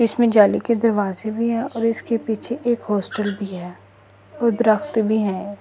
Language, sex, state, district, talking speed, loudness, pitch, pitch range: Hindi, female, Delhi, New Delhi, 180 wpm, -20 LUFS, 220 Hz, 205-230 Hz